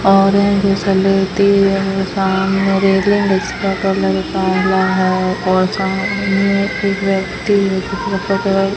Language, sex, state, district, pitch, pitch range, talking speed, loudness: Hindi, female, Rajasthan, Bikaner, 195 Hz, 190-195 Hz, 135 wpm, -15 LUFS